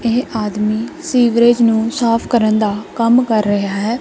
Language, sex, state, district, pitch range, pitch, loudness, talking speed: Punjabi, female, Punjab, Kapurthala, 215-240 Hz, 230 Hz, -15 LUFS, 165 wpm